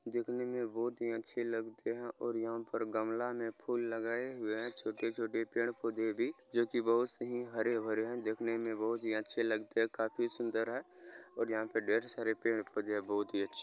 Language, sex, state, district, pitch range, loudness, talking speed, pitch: Hindi, male, Bihar, Araria, 110-120 Hz, -37 LUFS, 200 wpm, 115 Hz